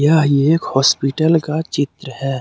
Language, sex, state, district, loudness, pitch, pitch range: Hindi, male, Jharkhand, Deoghar, -16 LUFS, 145 Hz, 135-160 Hz